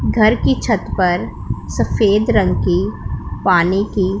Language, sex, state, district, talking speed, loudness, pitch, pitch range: Hindi, female, Punjab, Pathankot, 130 wpm, -17 LUFS, 200 Hz, 190-215 Hz